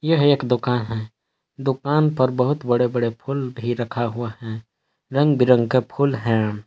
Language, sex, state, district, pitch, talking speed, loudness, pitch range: Hindi, male, Jharkhand, Palamu, 125 Hz, 160 wpm, -21 LUFS, 115-140 Hz